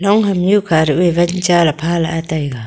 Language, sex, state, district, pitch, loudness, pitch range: Wancho, female, Arunachal Pradesh, Longding, 170 Hz, -14 LUFS, 160-180 Hz